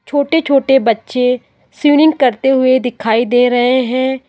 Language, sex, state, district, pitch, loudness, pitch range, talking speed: Hindi, female, Rajasthan, Jaipur, 255 Hz, -13 LUFS, 245-275 Hz, 140 wpm